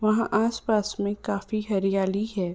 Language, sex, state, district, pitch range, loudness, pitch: Hindi, female, Uttar Pradesh, Ghazipur, 195-215 Hz, -26 LUFS, 205 Hz